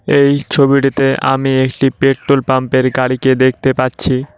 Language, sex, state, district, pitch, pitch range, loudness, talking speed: Bengali, male, West Bengal, Cooch Behar, 130 Hz, 130-135 Hz, -13 LUFS, 135 wpm